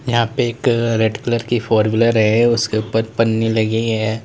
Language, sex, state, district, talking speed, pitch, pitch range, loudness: Hindi, male, Uttar Pradesh, Lalitpur, 195 wpm, 115 Hz, 110-115 Hz, -17 LUFS